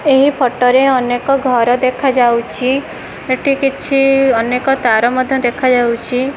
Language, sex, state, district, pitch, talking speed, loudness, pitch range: Odia, female, Odisha, Khordha, 255 Hz, 115 wpm, -13 LUFS, 245-270 Hz